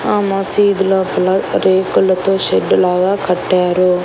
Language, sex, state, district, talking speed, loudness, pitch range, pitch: Telugu, female, Andhra Pradesh, Annamaya, 105 wpm, -14 LUFS, 185-195 Hz, 190 Hz